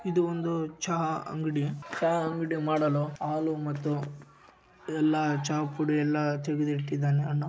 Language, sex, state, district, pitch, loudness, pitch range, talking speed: Kannada, male, Karnataka, Raichur, 150 Hz, -29 LUFS, 145-160 Hz, 130 wpm